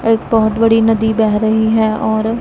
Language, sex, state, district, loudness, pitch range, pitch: Hindi, female, Punjab, Pathankot, -13 LUFS, 220-225 Hz, 220 Hz